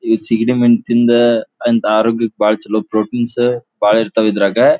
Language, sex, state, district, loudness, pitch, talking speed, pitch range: Kannada, male, Karnataka, Dharwad, -14 LUFS, 115 Hz, 140 wpm, 110-120 Hz